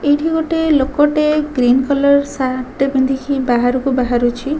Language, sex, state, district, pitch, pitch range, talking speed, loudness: Odia, female, Odisha, Khordha, 275 Hz, 255-295 Hz, 145 wpm, -15 LUFS